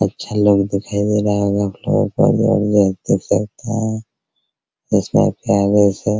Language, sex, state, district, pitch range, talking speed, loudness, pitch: Hindi, male, Bihar, Araria, 100-110 Hz, 75 wpm, -17 LUFS, 105 Hz